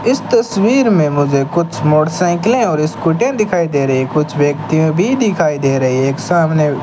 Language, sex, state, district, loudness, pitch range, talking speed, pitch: Hindi, male, Rajasthan, Bikaner, -14 LUFS, 145-190 Hz, 195 wpm, 155 Hz